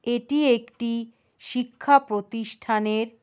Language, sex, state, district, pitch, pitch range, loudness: Bengali, female, West Bengal, Paschim Medinipur, 235 Hz, 225-250 Hz, -24 LUFS